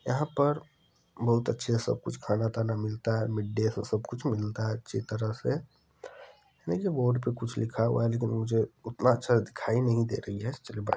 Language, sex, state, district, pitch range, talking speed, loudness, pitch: Hindi, male, Bihar, Supaul, 110-125 Hz, 210 wpm, -30 LUFS, 115 Hz